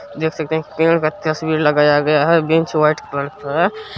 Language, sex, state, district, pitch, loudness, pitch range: Maithili, male, Bihar, Supaul, 155 Hz, -17 LUFS, 150-160 Hz